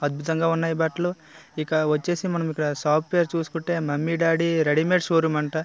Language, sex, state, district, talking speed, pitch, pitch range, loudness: Telugu, male, Andhra Pradesh, Visakhapatnam, 160 wpm, 160 Hz, 155-170 Hz, -23 LUFS